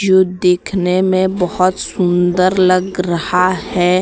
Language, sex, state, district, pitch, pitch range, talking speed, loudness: Hindi, female, Jharkhand, Deoghar, 185 Hz, 180-185 Hz, 135 wpm, -14 LUFS